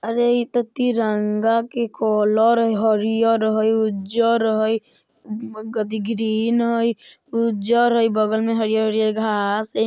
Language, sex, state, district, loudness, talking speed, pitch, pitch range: Bajjika, female, Bihar, Vaishali, -20 LUFS, 115 wpm, 225 Hz, 215-230 Hz